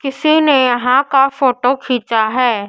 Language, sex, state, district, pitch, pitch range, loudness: Hindi, female, Madhya Pradesh, Dhar, 255 Hz, 245-275 Hz, -13 LUFS